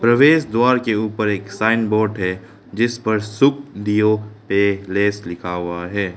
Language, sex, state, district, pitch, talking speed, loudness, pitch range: Hindi, male, Arunachal Pradesh, Lower Dibang Valley, 105 Hz, 145 wpm, -18 LUFS, 100-115 Hz